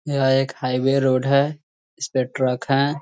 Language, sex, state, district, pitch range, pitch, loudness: Hindi, male, Bihar, Muzaffarpur, 130-140 Hz, 135 Hz, -21 LUFS